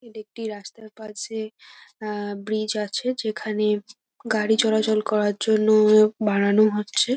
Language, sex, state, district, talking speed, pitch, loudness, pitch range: Bengali, female, West Bengal, North 24 Parganas, 125 wpm, 215 Hz, -22 LUFS, 210-220 Hz